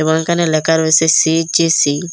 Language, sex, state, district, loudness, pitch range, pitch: Bengali, female, Assam, Hailakandi, -13 LUFS, 160-165 Hz, 160 Hz